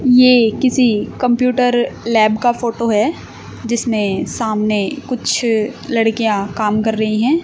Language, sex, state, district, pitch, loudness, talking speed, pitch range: Hindi, female, Haryana, Charkhi Dadri, 230 Hz, -16 LUFS, 120 wpm, 215-250 Hz